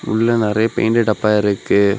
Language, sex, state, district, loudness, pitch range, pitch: Tamil, male, Tamil Nadu, Kanyakumari, -16 LUFS, 105-115 Hz, 110 Hz